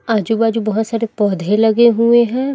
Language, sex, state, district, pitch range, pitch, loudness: Hindi, female, Chhattisgarh, Raipur, 220-235 Hz, 225 Hz, -14 LUFS